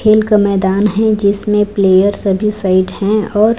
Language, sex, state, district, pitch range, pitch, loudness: Hindi, female, Chhattisgarh, Raipur, 195-215 Hz, 205 Hz, -13 LUFS